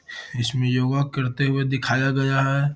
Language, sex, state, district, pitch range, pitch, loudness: Hindi, male, Bihar, Gaya, 130-135 Hz, 135 Hz, -22 LUFS